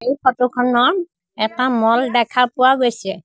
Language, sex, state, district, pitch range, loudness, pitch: Assamese, female, Assam, Sonitpur, 230-255 Hz, -17 LUFS, 250 Hz